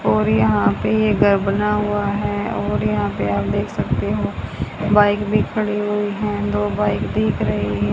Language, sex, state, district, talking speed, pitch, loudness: Hindi, female, Haryana, Charkhi Dadri, 190 wpm, 110 Hz, -19 LUFS